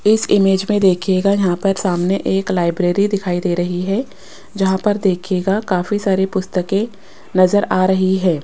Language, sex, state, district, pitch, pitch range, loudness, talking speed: Hindi, female, Rajasthan, Jaipur, 190 Hz, 180-200 Hz, -17 LUFS, 165 wpm